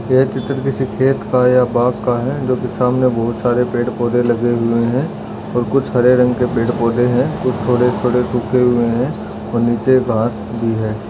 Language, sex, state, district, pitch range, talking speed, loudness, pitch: Hindi, male, Maharashtra, Nagpur, 120-125 Hz, 200 wpm, -16 LUFS, 125 Hz